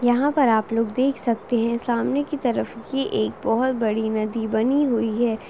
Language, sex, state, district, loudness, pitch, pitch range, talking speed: Hindi, female, Bihar, Begusarai, -22 LUFS, 235 Hz, 225-260 Hz, 195 wpm